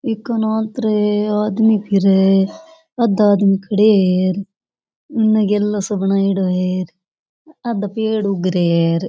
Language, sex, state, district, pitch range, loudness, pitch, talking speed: Rajasthani, female, Rajasthan, Churu, 195-220 Hz, -16 LUFS, 205 Hz, 90 wpm